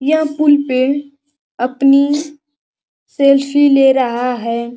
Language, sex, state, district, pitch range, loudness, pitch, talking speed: Hindi, male, Uttar Pradesh, Ghazipur, 255-290 Hz, -13 LUFS, 275 Hz, 115 wpm